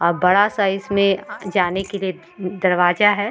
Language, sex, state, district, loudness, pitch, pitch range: Hindi, female, Bihar, Vaishali, -18 LUFS, 195 Hz, 180-200 Hz